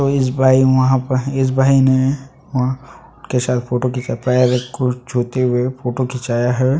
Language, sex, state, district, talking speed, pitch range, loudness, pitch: Hindi, male, Chhattisgarh, Sukma, 170 wpm, 125-130 Hz, -17 LUFS, 130 Hz